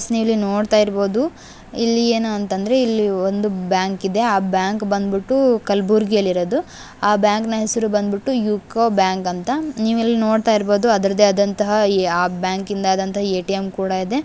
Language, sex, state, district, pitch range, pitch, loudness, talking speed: Kannada, female, Karnataka, Gulbarga, 195-225 Hz, 210 Hz, -18 LUFS, 145 wpm